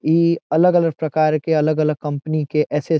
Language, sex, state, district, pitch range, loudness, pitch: Bhojpuri, male, Bihar, Saran, 150-165 Hz, -18 LUFS, 155 Hz